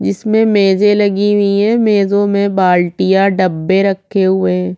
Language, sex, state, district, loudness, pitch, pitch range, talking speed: Hindi, female, Chhattisgarh, Korba, -12 LUFS, 195 Hz, 190-205 Hz, 150 wpm